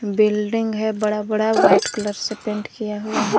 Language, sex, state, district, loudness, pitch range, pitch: Hindi, female, Jharkhand, Garhwa, -20 LUFS, 210-215 Hz, 215 Hz